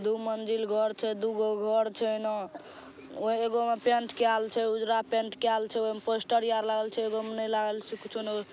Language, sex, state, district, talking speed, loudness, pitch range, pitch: Maithili, female, Bihar, Saharsa, 205 wpm, -30 LUFS, 215-225 Hz, 220 Hz